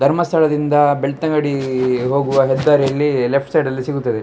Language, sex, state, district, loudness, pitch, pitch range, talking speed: Kannada, male, Karnataka, Dakshina Kannada, -16 LUFS, 140 Hz, 135-150 Hz, 100 wpm